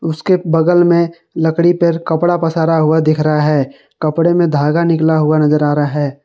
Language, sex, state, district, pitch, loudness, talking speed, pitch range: Hindi, male, Jharkhand, Garhwa, 160 Hz, -13 LUFS, 190 wpm, 150-170 Hz